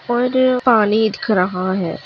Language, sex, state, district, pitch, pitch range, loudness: Hindi, female, Chhattisgarh, Kabirdham, 220 Hz, 190-245 Hz, -16 LUFS